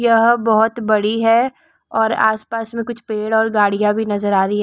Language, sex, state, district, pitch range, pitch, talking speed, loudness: Hindi, female, West Bengal, Purulia, 215-230 Hz, 220 Hz, 170 wpm, -17 LUFS